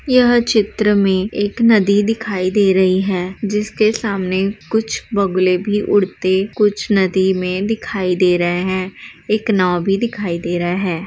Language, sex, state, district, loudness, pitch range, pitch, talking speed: Hindi, female, Uttar Pradesh, Jalaun, -16 LUFS, 185-210 Hz, 195 Hz, 155 wpm